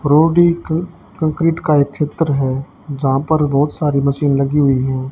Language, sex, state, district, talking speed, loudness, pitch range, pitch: Hindi, female, Haryana, Charkhi Dadri, 165 wpm, -16 LUFS, 140-160 Hz, 145 Hz